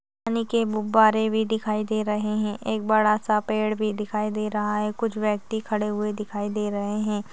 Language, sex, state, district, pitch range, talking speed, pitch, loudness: Hindi, female, Maharashtra, Dhule, 210-215 Hz, 205 wpm, 215 Hz, -25 LUFS